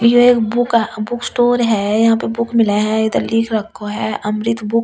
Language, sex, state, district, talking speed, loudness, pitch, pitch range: Hindi, female, Delhi, New Delhi, 235 wpm, -16 LUFS, 225 Hz, 215-235 Hz